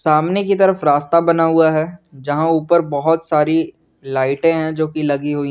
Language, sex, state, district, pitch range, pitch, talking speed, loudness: Hindi, male, Jharkhand, Garhwa, 145-165 Hz, 160 Hz, 175 wpm, -16 LUFS